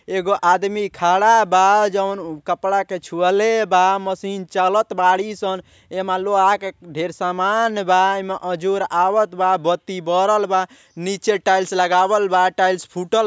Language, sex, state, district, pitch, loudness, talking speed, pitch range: Bhojpuri, male, Uttar Pradesh, Ghazipur, 190 Hz, -18 LUFS, 150 wpm, 180-200 Hz